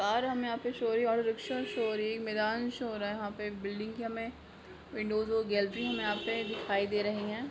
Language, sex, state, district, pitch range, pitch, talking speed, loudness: Hindi, female, Jharkhand, Jamtara, 210-230 Hz, 220 Hz, 225 wpm, -34 LUFS